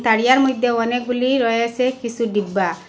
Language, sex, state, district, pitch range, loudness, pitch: Bengali, female, Assam, Hailakandi, 230-255 Hz, -18 LUFS, 235 Hz